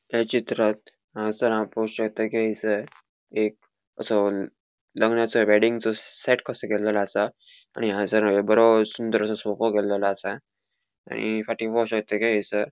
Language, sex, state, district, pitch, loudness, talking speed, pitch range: Konkani, male, Goa, North and South Goa, 110 Hz, -24 LUFS, 145 wpm, 105-115 Hz